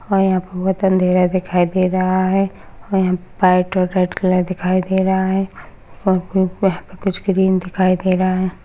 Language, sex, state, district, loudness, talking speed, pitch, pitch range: Hindi, female, Maharashtra, Sindhudurg, -17 LUFS, 180 wpm, 185 Hz, 185-190 Hz